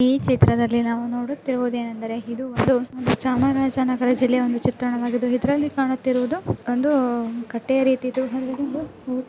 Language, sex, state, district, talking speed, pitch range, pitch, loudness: Kannada, female, Karnataka, Chamarajanagar, 70 wpm, 245-265 Hz, 255 Hz, -22 LUFS